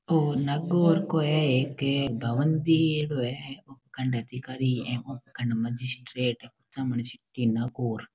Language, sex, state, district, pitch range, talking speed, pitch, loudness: Marwari, male, Rajasthan, Nagaur, 125-145 Hz, 120 wpm, 130 Hz, -27 LUFS